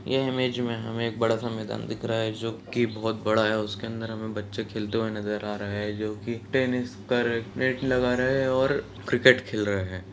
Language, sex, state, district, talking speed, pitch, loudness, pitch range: Hindi, male, Bihar, Purnia, 225 wpm, 115 Hz, -27 LUFS, 105-125 Hz